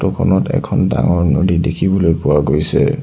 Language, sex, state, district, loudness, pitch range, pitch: Assamese, male, Assam, Sonitpur, -15 LUFS, 75-95 Hz, 80 Hz